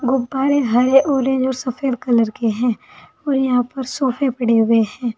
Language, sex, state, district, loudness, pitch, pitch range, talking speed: Hindi, female, Uttar Pradesh, Saharanpur, -18 LUFS, 255 Hz, 235-265 Hz, 175 wpm